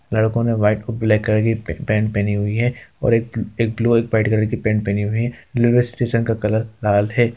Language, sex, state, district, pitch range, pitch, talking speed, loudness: Hindi, male, Bihar, Jamui, 105-115 Hz, 110 Hz, 235 wpm, -19 LUFS